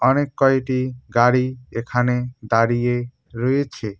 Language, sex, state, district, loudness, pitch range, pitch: Bengali, male, West Bengal, Cooch Behar, -20 LUFS, 120-130 Hz, 125 Hz